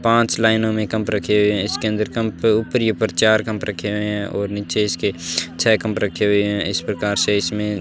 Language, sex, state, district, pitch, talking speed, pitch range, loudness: Hindi, male, Rajasthan, Bikaner, 105 Hz, 230 wpm, 100-110 Hz, -19 LUFS